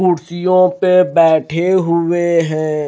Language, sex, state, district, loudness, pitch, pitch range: Hindi, male, Himachal Pradesh, Shimla, -14 LUFS, 170 Hz, 165-180 Hz